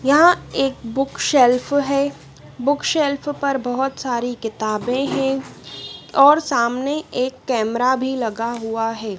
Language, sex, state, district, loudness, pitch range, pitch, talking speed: Hindi, female, Madhya Pradesh, Dhar, -19 LUFS, 235-280 Hz, 260 Hz, 130 wpm